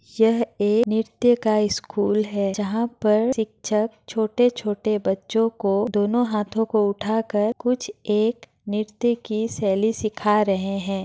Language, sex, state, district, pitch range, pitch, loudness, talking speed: Hindi, female, Bihar, Madhepura, 205-225 Hz, 215 Hz, -22 LUFS, 135 wpm